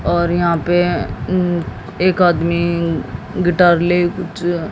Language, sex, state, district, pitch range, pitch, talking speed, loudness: Hindi, female, Haryana, Jhajjar, 170-175 Hz, 175 Hz, 100 wpm, -16 LUFS